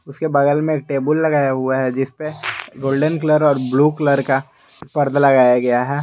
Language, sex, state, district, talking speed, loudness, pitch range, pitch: Hindi, male, Jharkhand, Garhwa, 180 wpm, -17 LUFS, 135-155 Hz, 140 Hz